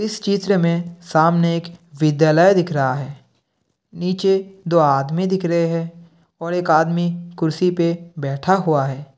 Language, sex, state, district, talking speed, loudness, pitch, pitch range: Hindi, male, Bihar, Kishanganj, 150 wpm, -18 LUFS, 170 Hz, 155-180 Hz